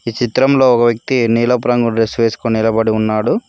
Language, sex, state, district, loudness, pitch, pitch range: Telugu, male, Telangana, Mahabubabad, -14 LUFS, 115 Hz, 115-125 Hz